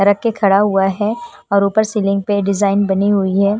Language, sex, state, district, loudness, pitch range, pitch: Hindi, female, Himachal Pradesh, Shimla, -15 LUFS, 195-210 Hz, 200 Hz